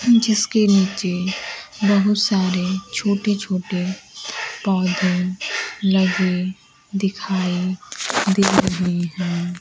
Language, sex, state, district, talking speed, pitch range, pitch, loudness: Hindi, female, Bihar, Kaimur, 75 wpm, 180-200 Hz, 190 Hz, -20 LUFS